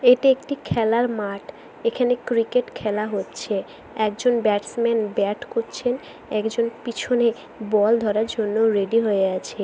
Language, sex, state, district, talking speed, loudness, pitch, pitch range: Bengali, female, West Bengal, Jhargram, 130 wpm, -22 LUFS, 225 Hz, 210-240 Hz